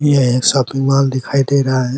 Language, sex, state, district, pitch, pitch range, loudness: Hindi, male, Uttar Pradesh, Ghazipur, 135 Hz, 130-135 Hz, -14 LUFS